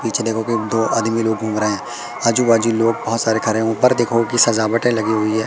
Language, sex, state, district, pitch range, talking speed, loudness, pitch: Hindi, female, Madhya Pradesh, Katni, 110-115 Hz, 250 wpm, -17 LUFS, 115 Hz